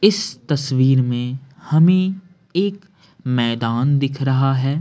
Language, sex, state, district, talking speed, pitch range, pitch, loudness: Hindi, male, Bihar, Patna, 110 wpm, 130-180 Hz, 140 Hz, -19 LUFS